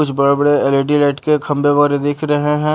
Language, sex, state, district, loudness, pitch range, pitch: Hindi, male, Haryana, Jhajjar, -15 LUFS, 145-150 Hz, 145 Hz